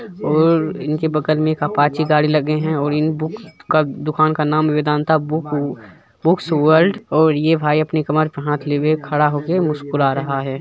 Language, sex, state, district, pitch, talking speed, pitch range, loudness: Hindi, male, Bihar, Madhepura, 155 Hz, 190 wpm, 150-155 Hz, -17 LUFS